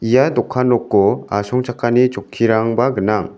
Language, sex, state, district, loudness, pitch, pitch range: Garo, male, Meghalaya, South Garo Hills, -16 LUFS, 120 Hz, 110-125 Hz